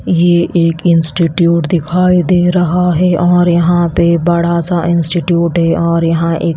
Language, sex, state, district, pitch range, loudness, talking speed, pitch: Hindi, female, Chhattisgarh, Raipur, 170-175 Hz, -11 LUFS, 155 wpm, 170 Hz